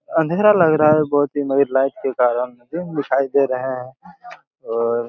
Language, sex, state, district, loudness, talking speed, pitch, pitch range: Hindi, male, Chhattisgarh, Raigarh, -18 LUFS, 175 wpm, 135 Hz, 125-155 Hz